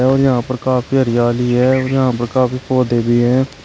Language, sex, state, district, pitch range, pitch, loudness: Hindi, male, Uttar Pradesh, Shamli, 120-130 Hz, 130 Hz, -15 LUFS